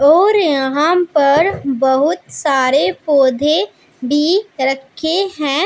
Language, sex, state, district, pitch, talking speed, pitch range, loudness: Hindi, female, Punjab, Pathankot, 295 Hz, 95 wpm, 270-340 Hz, -14 LUFS